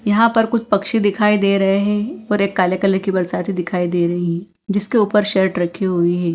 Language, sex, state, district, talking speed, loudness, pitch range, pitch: Hindi, female, Bihar, Katihar, 225 wpm, -17 LUFS, 180-210 Hz, 195 Hz